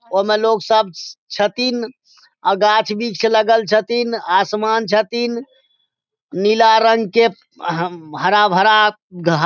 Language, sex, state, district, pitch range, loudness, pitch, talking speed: Maithili, male, Bihar, Supaul, 205-230 Hz, -16 LUFS, 220 Hz, 120 wpm